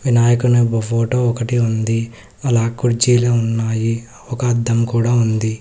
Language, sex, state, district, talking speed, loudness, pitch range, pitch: Telugu, male, Telangana, Hyderabad, 120 wpm, -17 LUFS, 115-120 Hz, 115 Hz